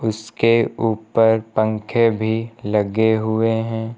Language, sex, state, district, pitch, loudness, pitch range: Hindi, male, Uttar Pradesh, Lucknow, 110 Hz, -19 LUFS, 110-115 Hz